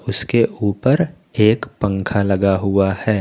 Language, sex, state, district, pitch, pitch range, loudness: Hindi, male, Jharkhand, Garhwa, 105 Hz, 100-120 Hz, -18 LUFS